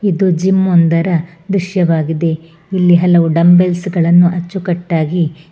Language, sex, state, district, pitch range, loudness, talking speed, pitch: Kannada, female, Karnataka, Bangalore, 165-180 Hz, -13 LUFS, 120 wpm, 175 Hz